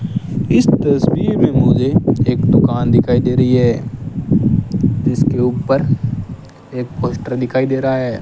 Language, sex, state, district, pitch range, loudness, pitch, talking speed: Hindi, male, Rajasthan, Bikaner, 125-135 Hz, -15 LUFS, 125 Hz, 130 wpm